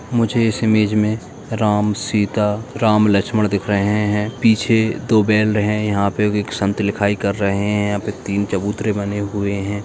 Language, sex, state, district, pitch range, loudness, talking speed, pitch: Hindi, male, Bihar, Darbhanga, 100-110 Hz, -18 LUFS, 185 wpm, 105 Hz